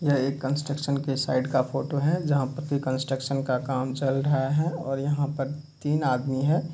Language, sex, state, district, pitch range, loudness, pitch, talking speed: Hindi, male, Bihar, Kishanganj, 135-145 Hz, -27 LUFS, 140 Hz, 215 wpm